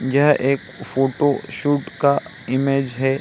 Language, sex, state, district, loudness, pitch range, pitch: Hindi, male, Bihar, Samastipur, -20 LUFS, 130-140 Hz, 135 Hz